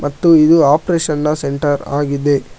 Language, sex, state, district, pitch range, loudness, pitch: Kannada, male, Karnataka, Bangalore, 145-160 Hz, -14 LUFS, 145 Hz